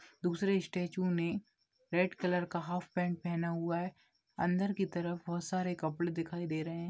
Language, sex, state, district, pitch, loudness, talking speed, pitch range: Hindi, female, Bihar, Jahanabad, 175 Hz, -36 LUFS, 180 wpm, 170-180 Hz